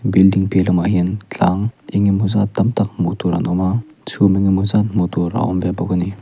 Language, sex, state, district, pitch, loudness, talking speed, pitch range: Mizo, male, Mizoram, Aizawl, 95 Hz, -17 LUFS, 260 wpm, 90-105 Hz